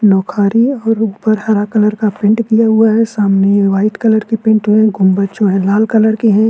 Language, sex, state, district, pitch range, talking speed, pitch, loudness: Hindi, male, Uttarakhand, Tehri Garhwal, 200-220 Hz, 240 wpm, 215 Hz, -12 LUFS